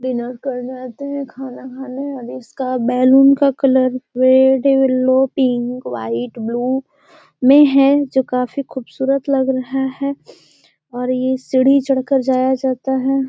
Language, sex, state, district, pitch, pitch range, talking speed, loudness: Hindi, female, Bihar, Gaya, 260 Hz, 255-270 Hz, 140 wpm, -16 LUFS